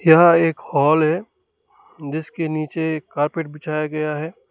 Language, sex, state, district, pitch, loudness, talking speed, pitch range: Hindi, male, West Bengal, Alipurduar, 160 Hz, -20 LUFS, 135 wpm, 155-170 Hz